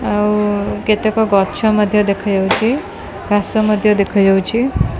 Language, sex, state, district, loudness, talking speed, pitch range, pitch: Odia, female, Odisha, Khordha, -15 LUFS, 120 wpm, 200-215 Hz, 210 Hz